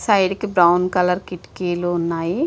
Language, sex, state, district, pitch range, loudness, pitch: Telugu, female, Andhra Pradesh, Visakhapatnam, 175-190 Hz, -19 LUFS, 180 Hz